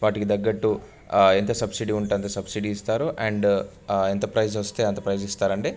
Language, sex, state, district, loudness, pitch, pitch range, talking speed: Telugu, male, Andhra Pradesh, Anantapur, -24 LUFS, 105 Hz, 100-105 Hz, 195 wpm